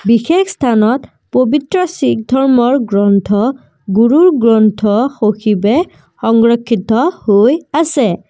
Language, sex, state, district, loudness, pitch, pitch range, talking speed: Assamese, female, Assam, Kamrup Metropolitan, -12 LUFS, 235 Hz, 215-280 Hz, 85 wpm